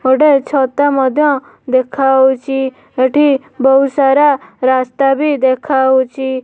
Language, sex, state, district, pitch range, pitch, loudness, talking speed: Odia, female, Odisha, Nuapada, 260-280 Hz, 270 Hz, -13 LUFS, 100 wpm